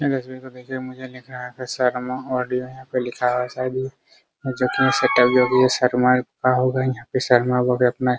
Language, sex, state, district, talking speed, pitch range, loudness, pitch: Hindi, male, Bihar, Araria, 115 wpm, 125-130 Hz, -20 LUFS, 125 Hz